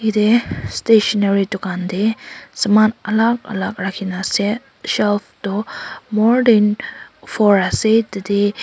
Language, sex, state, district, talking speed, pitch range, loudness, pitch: Nagamese, female, Nagaland, Kohima, 110 wpm, 200-220 Hz, -17 LUFS, 210 Hz